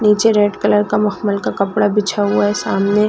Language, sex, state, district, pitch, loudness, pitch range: Hindi, female, Chhattisgarh, Raigarh, 205 Hz, -16 LUFS, 205-210 Hz